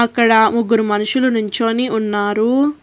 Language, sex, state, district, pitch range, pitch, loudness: Telugu, female, Telangana, Hyderabad, 215-235 Hz, 230 Hz, -15 LUFS